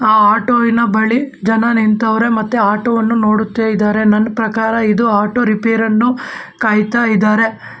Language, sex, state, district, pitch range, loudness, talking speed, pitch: Kannada, male, Karnataka, Bangalore, 215-235 Hz, -13 LUFS, 145 wpm, 225 Hz